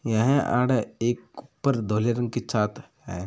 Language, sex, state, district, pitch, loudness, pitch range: Hindi, male, Rajasthan, Churu, 120 Hz, -25 LUFS, 110-130 Hz